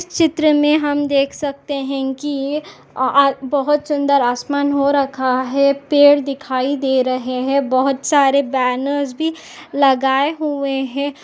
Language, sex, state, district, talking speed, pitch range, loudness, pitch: Hindi, female, Chhattisgarh, Bastar, 150 wpm, 265-290 Hz, -17 LUFS, 280 Hz